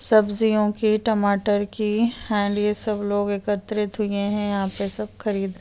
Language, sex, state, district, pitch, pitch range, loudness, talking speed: Hindi, female, Uttar Pradesh, Hamirpur, 210 Hz, 205-215 Hz, -20 LUFS, 140 wpm